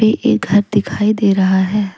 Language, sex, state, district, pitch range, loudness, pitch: Hindi, female, Jharkhand, Deoghar, 190-210 Hz, -14 LUFS, 205 Hz